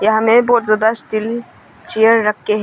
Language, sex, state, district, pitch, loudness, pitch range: Hindi, female, Arunachal Pradesh, Longding, 220 Hz, -14 LUFS, 215-230 Hz